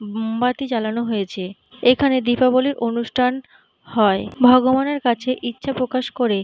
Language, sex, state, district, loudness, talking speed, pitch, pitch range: Bengali, female, West Bengal, Jhargram, -19 LUFS, 120 wpm, 245 Hz, 225-255 Hz